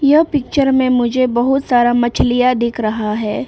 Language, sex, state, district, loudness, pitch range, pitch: Hindi, female, Arunachal Pradesh, Papum Pare, -15 LUFS, 240-270 Hz, 250 Hz